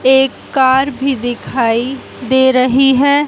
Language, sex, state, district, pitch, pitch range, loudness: Hindi, female, Haryana, Jhajjar, 260 Hz, 255-270 Hz, -13 LUFS